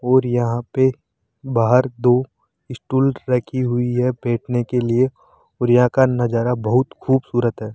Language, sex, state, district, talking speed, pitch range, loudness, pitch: Hindi, male, Rajasthan, Jaipur, 140 wpm, 120-130 Hz, -19 LUFS, 125 Hz